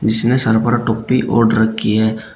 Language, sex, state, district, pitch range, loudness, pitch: Hindi, male, Uttar Pradesh, Shamli, 110-120 Hz, -15 LUFS, 110 Hz